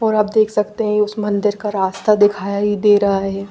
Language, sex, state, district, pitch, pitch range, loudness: Hindi, female, Bihar, Patna, 210 Hz, 200-210 Hz, -17 LUFS